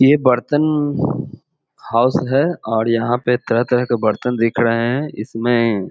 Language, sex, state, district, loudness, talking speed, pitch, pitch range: Hindi, male, Bihar, Jamui, -17 LUFS, 150 wpm, 120 Hz, 115-145 Hz